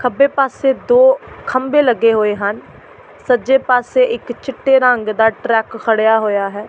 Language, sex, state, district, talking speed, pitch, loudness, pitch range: Punjabi, female, Delhi, New Delhi, 150 wpm, 250 Hz, -14 LUFS, 220-270 Hz